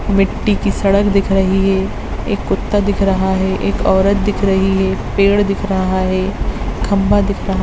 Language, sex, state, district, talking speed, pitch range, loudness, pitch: Hindi, female, Bihar, Madhepura, 190 wpm, 190-200 Hz, -15 LUFS, 195 Hz